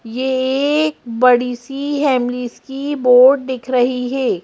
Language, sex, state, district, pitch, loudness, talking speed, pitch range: Hindi, female, Madhya Pradesh, Bhopal, 260 Hz, -16 LUFS, 135 wpm, 245-275 Hz